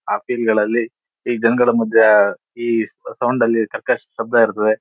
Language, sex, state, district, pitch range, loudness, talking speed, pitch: Kannada, male, Karnataka, Shimoga, 110-120 Hz, -17 LUFS, 135 wpm, 115 Hz